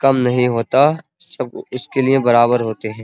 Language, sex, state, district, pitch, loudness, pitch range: Hindi, male, Uttar Pradesh, Muzaffarnagar, 125 Hz, -16 LUFS, 120-135 Hz